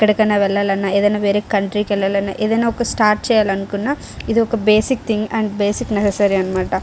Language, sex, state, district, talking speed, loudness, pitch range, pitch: Telugu, female, Andhra Pradesh, Srikakulam, 140 wpm, -17 LUFS, 200-220 Hz, 210 Hz